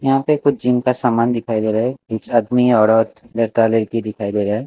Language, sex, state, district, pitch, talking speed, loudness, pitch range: Hindi, male, Maharashtra, Mumbai Suburban, 115 Hz, 245 wpm, -17 LUFS, 110-125 Hz